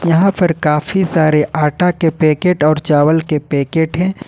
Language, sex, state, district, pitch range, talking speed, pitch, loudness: Hindi, male, Jharkhand, Ranchi, 150-180 Hz, 170 wpm, 160 Hz, -14 LUFS